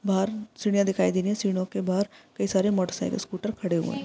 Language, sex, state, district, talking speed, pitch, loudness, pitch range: Hindi, female, Andhra Pradesh, Visakhapatnam, 265 wpm, 200 Hz, -27 LUFS, 190-210 Hz